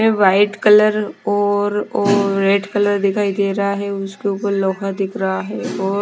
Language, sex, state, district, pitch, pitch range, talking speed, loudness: Hindi, female, Himachal Pradesh, Shimla, 200 Hz, 195-205 Hz, 160 wpm, -17 LUFS